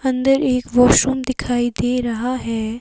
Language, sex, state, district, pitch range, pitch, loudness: Hindi, female, Himachal Pradesh, Shimla, 240-260 Hz, 250 Hz, -18 LUFS